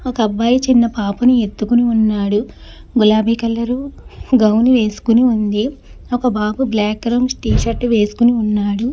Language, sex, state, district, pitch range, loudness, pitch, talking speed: Telugu, male, Telangana, Hyderabad, 215-245 Hz, -15 LUFS, 230 Hz, 130 wpm